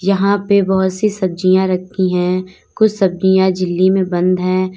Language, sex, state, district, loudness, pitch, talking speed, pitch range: Hindi, female, Uttar Pradesh, Lalitpur, -15 LUFS, 185 Hz, 165 wpm, 185-190 Hz